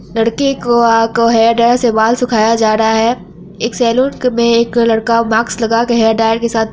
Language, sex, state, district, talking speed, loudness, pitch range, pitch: Hindi, female, Bihar, Araria, 195 wpm, -12 LUFS, 225-235 Hz, 230 Hz